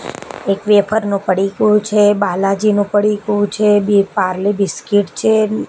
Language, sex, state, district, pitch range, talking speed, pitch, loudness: Gujarati, female, Gujarat, Gandhinagar, 195-210 Hz, 125 wpm, 205 Hz, -15 LUFS